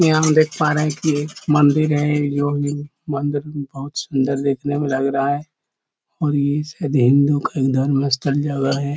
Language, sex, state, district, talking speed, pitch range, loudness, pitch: Hindi, male, Chhattisgarh, Korba, 185 wpm, 140-150 Hz, -19 LUFS, 145 Hz